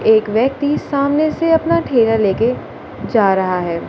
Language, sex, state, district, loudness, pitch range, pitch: Hindi, female, Gujarat, Gandhinagar, -15 LUFS, 210-295 Hz, 240 Hz